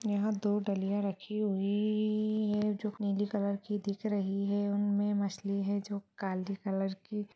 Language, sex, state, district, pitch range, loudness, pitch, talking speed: Hindi, female, Chhattisgarh, Rajnandgaon, 200-210 Hz, -33 LUFS, 205 Hz, 165 wpm